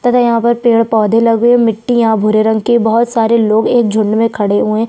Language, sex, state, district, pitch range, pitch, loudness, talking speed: Hindi, female, Chhattisgarh, Sukma, 220-235 Hz, 230 Hz, -11 LUFS, 270 wpm